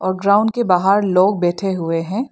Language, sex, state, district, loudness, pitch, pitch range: Hindi, female, Arunachal Pradesh, Lower Dibang Valley, -16 LUFS, 190 Hz, 180-205 Hz